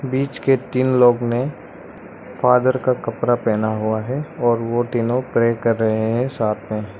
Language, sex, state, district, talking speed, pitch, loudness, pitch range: Hindi, male, Arunachal Pradesh, Lower Dibang Valley, 170 wpm, 120 Hz, -19 LUFS, 115-130 Hz